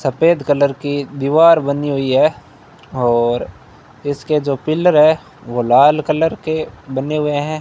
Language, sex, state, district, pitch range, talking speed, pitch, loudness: Hindi, male, Rajasthan, Bikaner, 135-155 Hz, 150 wpm, 145 Hz, -15 LUFS